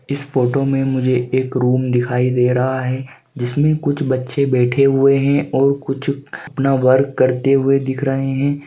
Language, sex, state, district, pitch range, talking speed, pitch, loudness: Hindi, male, Uttarakhand, Uttarkashi, 130-140 Hz, 175 wpm, 135 Hz, -17 LUFS